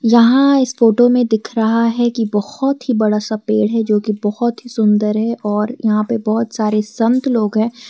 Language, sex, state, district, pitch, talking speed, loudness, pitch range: Hindi, female, Jharkhand, Garhwa, 225 Hz, 205 wpm, -15 LUFS, 215-240 Hz